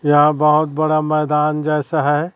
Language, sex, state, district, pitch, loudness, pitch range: Hindi, female, Chhattisgarh, Raipur, 150 Hz, -16 LUFS, 150-155 Hz